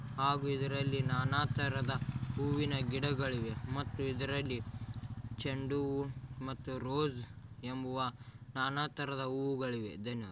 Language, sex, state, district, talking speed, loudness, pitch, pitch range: Kannada, male, Karnataka, Raichur, 105 wpm, -37 LUFS, 130 Hz, 125-140 Hz